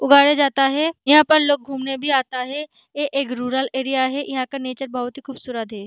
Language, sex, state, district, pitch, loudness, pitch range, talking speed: Hindi, female, Chhattisgarh, Balrampur, 270 Hz, -20 LUFS, 260-285 Hz, 215 wpm